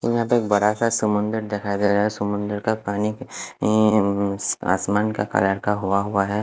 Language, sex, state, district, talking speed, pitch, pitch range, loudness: Hindi, male, Punjab, Fazilka, 175 wpm, 105 Hz, 100-110 Hz, -22 LUFS